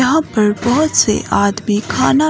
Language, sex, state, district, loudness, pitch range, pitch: Hindi, female, Himachal Pradesh, Shimla, -14 LUFS, 210-305 Hz, 240 Hz